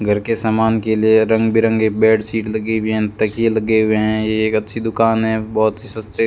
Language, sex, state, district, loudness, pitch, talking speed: Hindi, male, Rajasthan, Bikaner, -16 LUFS, 110 Hz, 240 wpm